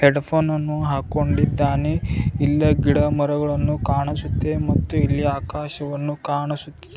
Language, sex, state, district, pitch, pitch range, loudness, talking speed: Kannada, male, Karnataka, Bidar, 145 Hz, 140-150 Hz, -21 LUFS, 105 wpm